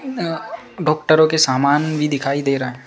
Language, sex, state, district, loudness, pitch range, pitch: Hindi, male, Madhya Pradesh, Bhopal, -17 LUFS, 140-160 Hz, 150 Hz